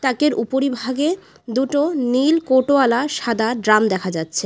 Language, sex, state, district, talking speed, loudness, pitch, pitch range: Bengali, female, West Bengal, Alipurduar, 120 wpm, -18 LUFS, 260 Hz, 225-285 Hz